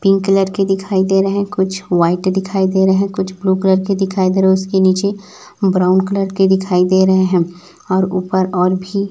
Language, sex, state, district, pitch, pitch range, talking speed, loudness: Hindi, male, Chhattisgarh, Raipur, 190 Hz, 185-195 Hz, 230 wpm, -15 LUFS